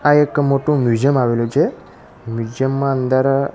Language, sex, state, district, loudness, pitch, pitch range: Gujarati, male, Gujarat, Gandhinagar, -17 LUFS, 135 Hz, 120-140 Hz